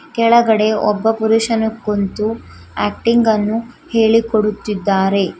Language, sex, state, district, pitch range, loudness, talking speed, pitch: Kannada, female, Karnataka, Koppal, 205-225 Hz, -16 LUFS, 80 wpm, 220 Hz